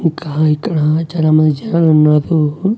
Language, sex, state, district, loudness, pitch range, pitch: Telugu, male, Andhra Pradesh, Annamaya, -13 LUFS, 150-165 Hz, 155 Hz